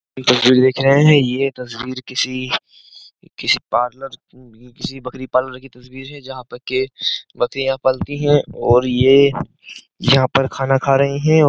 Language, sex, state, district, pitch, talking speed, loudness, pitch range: Hindi, male, Uttar Pradesh, Jyotiba Phule Nagar, 130 Hz, 150 wpm, -17 LUFS, 125-135 Hz